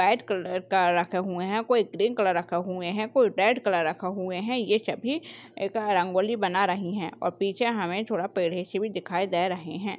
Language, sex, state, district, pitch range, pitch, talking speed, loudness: Hindi, female, Maharashtra, Nagpur, 180-215 Hz, 190 Hz, 210 wpm, -27 LUFS